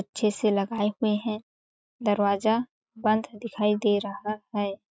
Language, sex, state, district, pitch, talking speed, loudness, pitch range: Hindi, female, Chhattisgarh, Balrampur, 210 Hz, 130 wpm, -27 LUFS, 205-220 Hz